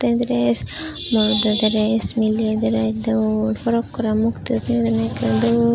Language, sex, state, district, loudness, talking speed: Chakma, female, Tripura, Unakoti, -19 LUFS, 115 wpm